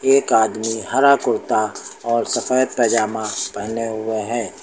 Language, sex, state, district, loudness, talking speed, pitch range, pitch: Hindi, male, Uttar Pradesh, Lucknow, -19 LUFS, 130 wpm, 110-125 Hz, 115 Hz